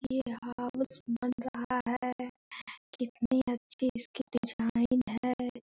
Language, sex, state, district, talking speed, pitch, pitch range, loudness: Hindi, female, Bihar, Gopalganj, 105 wpm, 245 Hz, 240-255 Hz, -34 LUFS